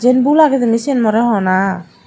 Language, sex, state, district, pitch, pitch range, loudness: Chakma, female, Tripura, Dhalai, 230 Hz, 195-260 Hz, -13 LUFS